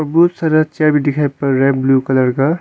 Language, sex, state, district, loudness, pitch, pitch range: Hindi, male, Arunachal Pradesh, Longding, -14 LUFS, 145 Hz, 135-155 Hz